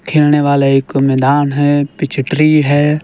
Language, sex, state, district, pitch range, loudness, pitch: Hindi, male, Himachal Pradesh, Shimla, 140-150 Hz, -12 LUFS, 145 Hz